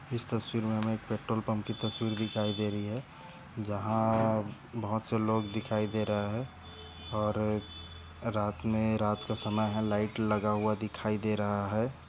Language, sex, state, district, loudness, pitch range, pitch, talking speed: Hindi, male, Maharashtra, Chandrapur, -32 LUFS, 105-110 Hz, 110 Hz, 180 wpm